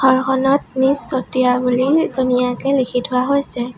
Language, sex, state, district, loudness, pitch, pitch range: Assamese, female, Assam, Sonitpur, -17 LUFS, 260 Hz, 250-270 Hz